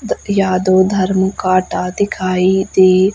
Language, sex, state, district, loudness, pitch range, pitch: Hindi, female, Madhya Pradesh, Umaria, -14 LUFS, 185-195 Hz, 190 Hz